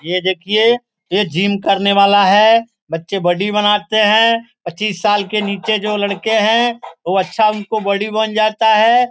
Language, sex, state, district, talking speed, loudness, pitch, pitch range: Hindi, male, Bihar, Gopalganj, 165 wpm, -14 LUFS, 210 Hz, 200-220 Hz